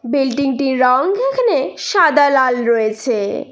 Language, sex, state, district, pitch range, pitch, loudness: Bengali, female, West Bengal, Cooch Behar, 245-285 Hz, 265 Hz, -15 LUFS